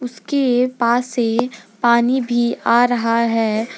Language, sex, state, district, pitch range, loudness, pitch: Hindi, female, Jharkhand, Garhwa, 230-245 Hz, -17 LUFS, 240 Hz